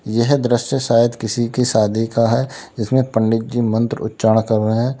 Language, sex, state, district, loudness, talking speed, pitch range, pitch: Hindi, male, Uttar Pradesh, Lalitpur, -17 LUFS, 190 wpm, 110-125 Hz, 115 Hz